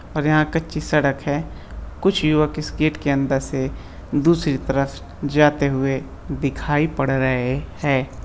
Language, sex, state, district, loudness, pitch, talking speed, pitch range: Hindi, male, Bihar, East Champaran, -21 LUFS, 145 Hz, 145 wpm, 135-155 Hz